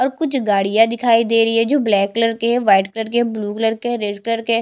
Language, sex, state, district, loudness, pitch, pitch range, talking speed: Hindi, female, Chhattisgarh, Jashpur, -17 LUFS, 230 Hz, 215-235 Hz, 300 wpm